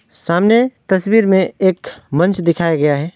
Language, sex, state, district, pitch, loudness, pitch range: Hindi, male, West Bengal, Alipurduar, 175 Hz, -15 LUFS, 170-195 Hz